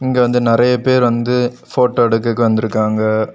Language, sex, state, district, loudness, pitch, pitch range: Tamil, male, Tamil Nadu, Kanyakumari, -15 LUFS, 120 Hz, 115-125 Hz